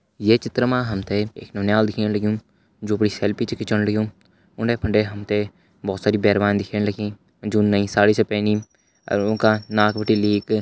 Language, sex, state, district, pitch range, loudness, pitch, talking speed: Hindi, male, Uttarakhand, Uttarkashi, 105-110 Hz, -21 LUFS, 105 Hz, 185 wpm